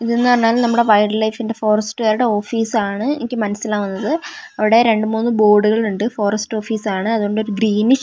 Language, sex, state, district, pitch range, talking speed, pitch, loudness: Malayalam, female, Kerala, Wayanad, 210-235 Hz, 170 wpm, 220 Hz, -17 LUFS